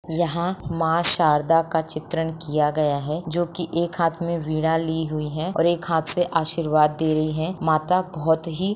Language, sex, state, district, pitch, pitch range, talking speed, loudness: Hindi, female, Jharkhand, Sahebganj, 160 Hz, 155-170 Hz, 190 wpm, -22 LUFS